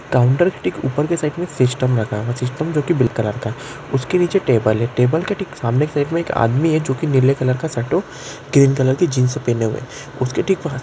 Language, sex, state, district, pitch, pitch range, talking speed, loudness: Hindi, male, Chhattisgarh, Korba, 135 Hz, 125-155 Hz, 220 wpm, -18 LUFS